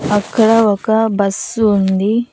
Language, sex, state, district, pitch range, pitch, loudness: Telugu, female, Andhra Pradesh, Annamaya, 200-225 Hz, 210 Hz, -14 LUFS